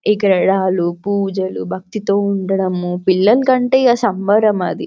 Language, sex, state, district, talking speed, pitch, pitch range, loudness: Telugu, female, Telangana, Karimnagar, 110 wpm, 195 Hz, 185-210 Hz, -16 LUFS